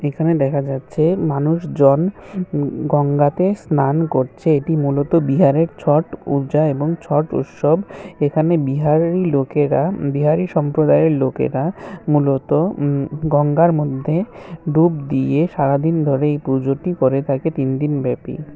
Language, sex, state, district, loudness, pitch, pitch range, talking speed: Bengali, male, Tripura, West Tripura, -18 LUFS, 150 Hz, 140-165 Hz, 115 wpm